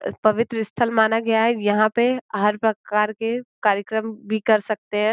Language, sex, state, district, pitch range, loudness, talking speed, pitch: Hindi, female, Uttar Pradesh, Gorakhpur, 210-225 Hz, -21 LUFS, 175 wpm, 220 Hz